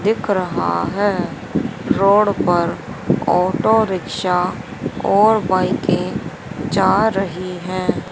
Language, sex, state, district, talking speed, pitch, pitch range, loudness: Hindi, female, Haryana, Rohtak, 90 wpm, 185 Hz, 180-205 Hz, -18 LUFS